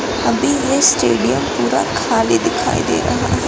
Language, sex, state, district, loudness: Hindi, female, Gujarat, Gandhinagar, -15 LUFS